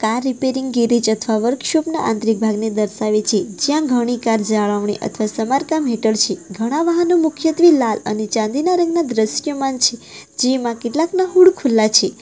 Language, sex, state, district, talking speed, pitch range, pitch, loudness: Gujarati, female, Gujarat, Valsad, 155 wpm, 220-300 Hz, 235 Hz, -17 LUFS